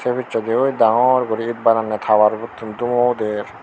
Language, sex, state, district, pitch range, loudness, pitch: Chakma, male, Tripura, Unakoti, 110-125 Hz, -18 LUFS, 115 Hz